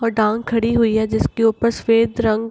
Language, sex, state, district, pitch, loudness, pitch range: Hindi, female, Bihar, Gopalganj, 230 Hz, -18 LUFS, 220-230 Hz